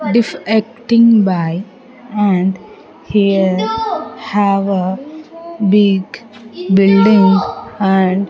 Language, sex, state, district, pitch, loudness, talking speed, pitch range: English, female, Andhra Pradesh, Sri Satya Sai, 205 Hz, -13 LUFS, 70 wpm, 190-225 Hz